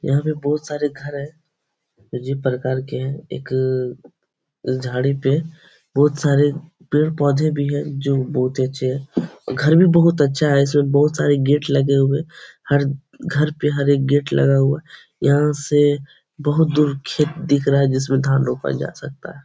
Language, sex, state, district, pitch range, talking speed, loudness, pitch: Hindi, male, Bihar, Supaul, 135-150 Hz, 175 wpm, -19 LUFS, 145 Hz